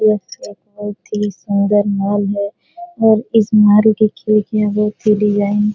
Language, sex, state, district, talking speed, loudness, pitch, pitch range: Hindi, female, Bihar, Supaul, 190 wpm, -15 LUFS, 210 Hz, 205-215 Hz